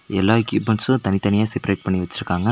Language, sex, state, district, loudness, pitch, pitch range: Tamil, male, Tamil Nadu, Nilgiris, -20 LUFS, 100 Hz, 95-115 Hz